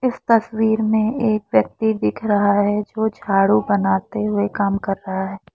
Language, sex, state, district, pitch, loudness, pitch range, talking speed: Hindi, female, Assam, Kamrup Metropolitan, 210 Hz, -19 LUFS, 195-220 Hz, 175 wpm